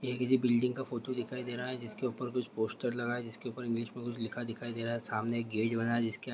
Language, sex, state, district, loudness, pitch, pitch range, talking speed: Hindi, male, Bihar, Vaishali, -35 LUFS, 120 Hz, 115-125 Hz, 285 wpm